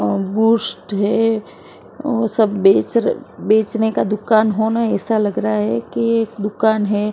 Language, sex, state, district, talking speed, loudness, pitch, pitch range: Hindi, female, Maharashtra, Mumbai Suburban, 150 wpm, -17 LUFS, 220 Hz, 205-225 Hz